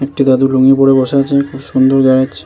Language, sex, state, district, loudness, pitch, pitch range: Bengali, male, West Bengal, Jalpaiguri, -11 LUFS, 135 Hz, 130-135 Hz